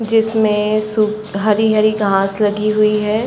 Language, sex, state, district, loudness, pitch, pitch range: Hindi, female, Chhattisgarh, Bastar, -15 LUFS, 215 Hz, 210-215 Hz